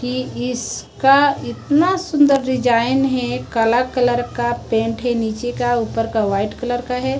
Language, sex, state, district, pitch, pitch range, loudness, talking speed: Hindi, male, Chhattisgarh, Raipur, 245 Hz, 230-260 Hz, -18 LUFS, 160 wpm